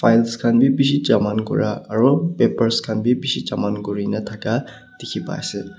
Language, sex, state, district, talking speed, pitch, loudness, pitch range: Nagamese, male, Nagaland, Kohima, 175 wpm, 115 Hz, -20 LUFS, 110-125 Hz